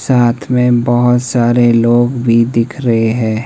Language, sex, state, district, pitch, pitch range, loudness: Hindi, male, Himachal Pradesh, Shimla, 120 Hz, 115-125 Hz, -12 LUFS